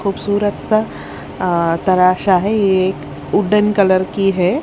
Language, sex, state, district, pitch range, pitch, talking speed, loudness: Hindi, female, Haryana, Charkhi Dadri, 180-205 Hz, 190 Hz, 130 wpm, -15 LUFS